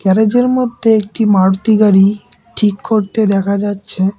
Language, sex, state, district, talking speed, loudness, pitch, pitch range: Bengali, male, West Bengal, Cooch Behar, 130 wpm, -13 LUFS, 205 Hz, 195-220 Hz